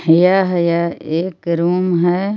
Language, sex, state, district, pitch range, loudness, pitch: Hindi, female, Jharkhand, Palamu, 170-185 Hz, -16 LUFS, 175 Hz